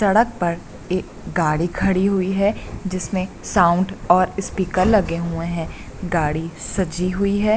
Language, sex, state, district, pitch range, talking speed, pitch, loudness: Hindi, female, Bihar, Bhagalpur, 170-195 Hz, 145 wpm, 185 Hz, -21 LUFS